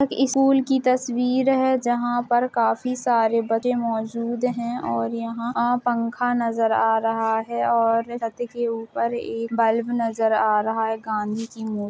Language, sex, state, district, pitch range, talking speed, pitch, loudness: Hindi, female, Jharkhand, Jamtara, 225-245 Hz, 160 wpm, 235 Hz, -22 LUFS